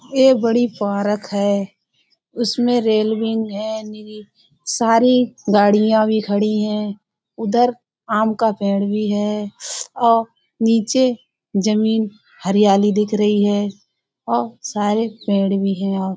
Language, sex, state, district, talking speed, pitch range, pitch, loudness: Hindi, female, Uttar Pradesh, Budaun, 125 wpm, 205-225 Hz, 215 Hz, -18 LUFS